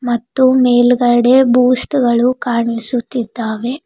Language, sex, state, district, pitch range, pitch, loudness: Kannada, female, Karnataka, Bidar, 240-250 Hz, 245 Hz, -13 LUFS